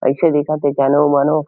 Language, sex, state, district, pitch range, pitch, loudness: Chhattisgarhi, male, Chhattisgarh, Kabirdham, 140-155 Hz, 145 Hz, -15 LUFS